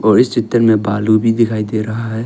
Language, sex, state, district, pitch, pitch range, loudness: Hindi, male, Arunachal Pradesh, Longding, 110 Hz, 110-115 Hz, -14 LUFS